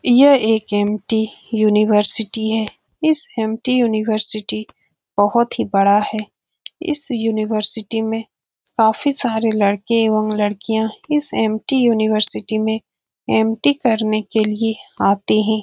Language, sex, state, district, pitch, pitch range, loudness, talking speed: Hindi, female, Bihar, Saran, 220 Hz, 215-230 Hz, -17 LUFS, 115 wpm